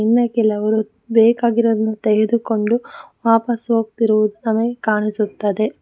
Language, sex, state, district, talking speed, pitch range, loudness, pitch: Kannada, female, Karnataka, Bangalore, 80 wpm, 215-235 Hz, -18 LUFS, 220 Hz